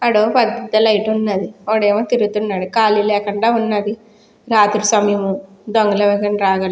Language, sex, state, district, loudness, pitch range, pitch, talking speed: Telugu, female, Andhra Pradesh, Guntur, -16 LUFS, 205-220 Hz, 210 Hz, 135 wpm